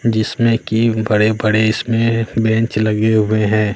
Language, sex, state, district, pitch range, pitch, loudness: Hindi, male, Bihar, Katihar, 110-115 Hz, 110 Hz, -15 LUFS